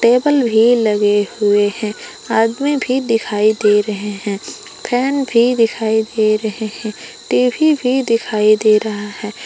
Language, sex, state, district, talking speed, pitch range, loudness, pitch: Hindi, female, Jharkhand, Palamu, 145 wpm, 210-245 Hz, -15 LUFS, 220 Hz